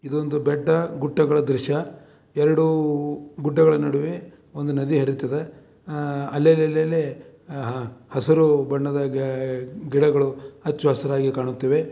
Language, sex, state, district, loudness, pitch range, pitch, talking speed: Kannada, male, Karnataka, Dharwad, -22 LUFS, 140-155 Hz, 145 Hz, 90 wpm